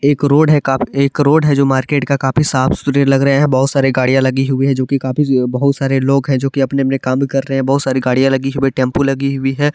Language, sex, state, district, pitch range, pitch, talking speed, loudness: Hindi, male, Bihar, Supaul, 130-140 Hz, 135 Hz, 235 wpm, -14 LUFS